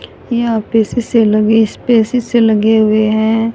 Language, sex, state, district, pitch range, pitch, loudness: Hindi, female, Haryana, Rohtak, 220-235 Hz, 225 Hz, -12 LUFS